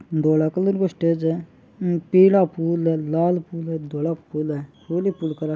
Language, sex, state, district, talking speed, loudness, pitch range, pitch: Marwari, male, Rajasthan, Churu, 195 wpm, -22 LUFS, 155-175 Hz, 165 Hz